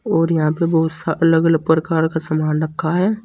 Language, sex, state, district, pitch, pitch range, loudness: Hindi, male, Uttar Pradesh, Saharanpur, 160 Hz, 160-165 Hz, -17 LUFS